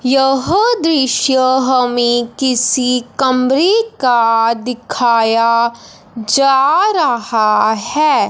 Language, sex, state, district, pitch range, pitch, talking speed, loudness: Hindi, male, Punjab, Fazilka, 235-270 Hz, 250 Hz, 70 wpm, -13 LUFS